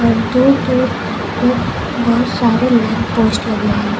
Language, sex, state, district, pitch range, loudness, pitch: Hindi, female, Uttar Pradesh, Lucknow, 225-250 Hz, -15 LUFS, 235 Hz